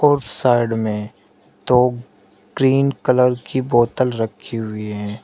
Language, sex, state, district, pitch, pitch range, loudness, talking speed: Hindi, male, Uttar Pradesh, Shamli, 120 Hz, 105-125 Hz, -18 LUFS, 125 wpm